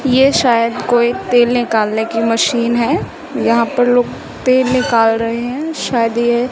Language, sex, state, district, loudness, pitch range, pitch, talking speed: Hindi, female, Chhattisgarh, Raipur, -14 LUFS, 230-250 Hz, 240 Hz, 155 wpm